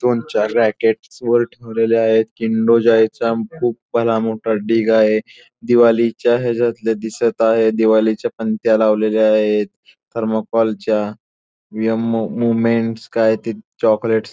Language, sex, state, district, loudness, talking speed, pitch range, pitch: Marathi, male, Maharashtra, Pune, -17 LUFS, 125 wpm, 110-115 Hz, 115 Hz